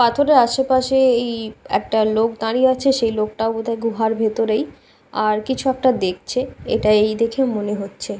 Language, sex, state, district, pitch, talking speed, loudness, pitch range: Bengali, female, West Bengal, Kolkata, 230 Hz, 175 wpm, -19 LUFS, 215-255 Hz